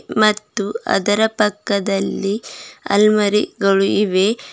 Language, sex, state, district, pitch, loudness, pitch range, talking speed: Kannada, female, Karnataka, Bidar, 205 Hz, -17 LUFS, 200-210 Hz, 65 wpm